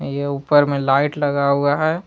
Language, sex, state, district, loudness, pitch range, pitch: Hindi, male, Jharkhand, Palamu, -18 LUFS, 140-145 Hz, 140 Hz